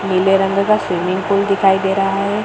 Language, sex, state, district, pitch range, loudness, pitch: Hindi, female, Maharashtra, Mumbai Suburban, 190-200 Hz, -15 LUFS, 195 Hz